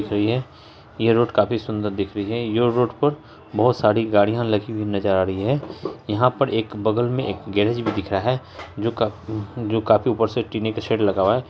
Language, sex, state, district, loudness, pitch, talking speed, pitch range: Hindi, male, Bihar, Saharsa, -22 LUFS, 110 Hz, 225 wpm, 105-120 Hz